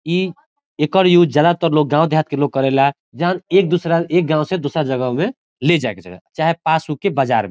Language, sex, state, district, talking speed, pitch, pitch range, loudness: Bhojpuri, male, Bihar, Saran, 225 wpm, 160 Hz, 145-180 Hz, -17 LUFS